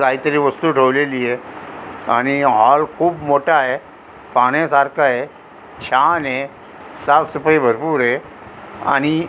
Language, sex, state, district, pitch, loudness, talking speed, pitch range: Marathi, female, Maharashtra, Aurangabad, 140 Hz, -16 LUFS, 95 wpm, 130-155 Hz